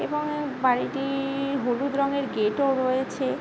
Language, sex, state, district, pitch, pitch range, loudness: Bengali, female, West Bengal, Jhargram, 275 Hz, 260-275 Hz, -26 LUFS